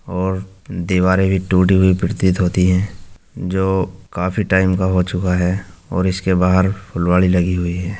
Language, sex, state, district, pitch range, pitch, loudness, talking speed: Hindi, male, Uttar Pradesh, Jyotiba Phule Nagar, 90-95 Hz, 95 Hz, -17 LUFS, 165 wpm